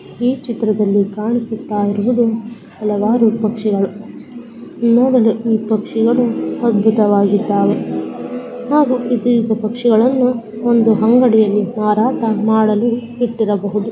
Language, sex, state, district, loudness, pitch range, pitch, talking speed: Kannada, female, Karnataka, Belgaum, -15 LUFS, 210-240 Hz, 225 Hz, 75 wpm